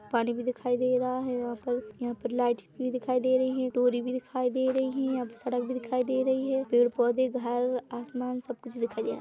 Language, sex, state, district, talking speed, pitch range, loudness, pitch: Hindi, female, Chhattisgarh, Bilaspur, 255 wpm, 240-255 Hz, -29 LUFS, 250 Hz